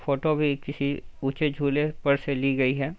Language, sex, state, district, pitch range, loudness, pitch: Hindi, male, Bihar, Saran, 140-150 Hz, -26 LUFS, 140 Hz